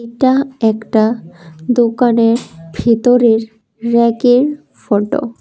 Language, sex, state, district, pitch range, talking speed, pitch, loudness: Bengali, female, Tripura, West Tripura, 220-245 Hz, 80 wpm, 230 Hz, -13 LUFS